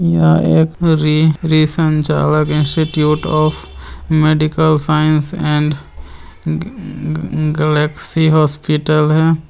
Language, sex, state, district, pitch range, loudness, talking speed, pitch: Hindi, male, Bihar, Purnia, 150-155 Hz, -14 LUFS, 70 wpm, 155 Hz